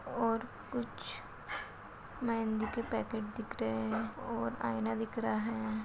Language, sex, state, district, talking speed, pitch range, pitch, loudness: Hindi, female, Chhattisgarh, Bilaspur, 135 wpm, 210-230 Hz, 225 Hz, -37 LUFS